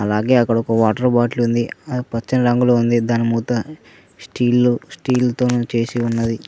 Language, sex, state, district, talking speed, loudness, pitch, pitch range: Telugu, male, Telangana, Mahabubabad, 165 wpm, -18 LUFS, 120 Hz, 115-125 Hz